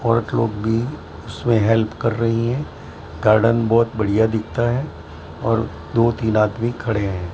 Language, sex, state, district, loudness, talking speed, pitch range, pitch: Hindi, male, Maharashtra, Mumbai Suburban, -19 LUFS, 155 wpm, 105-115 Hz, 115 Hz